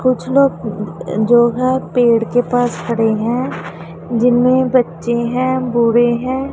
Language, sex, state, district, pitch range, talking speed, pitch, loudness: Hindi, female, Punjab, Pathankot, 230-255 Hz, 130 wpm, 240 Hz, -15 LUFS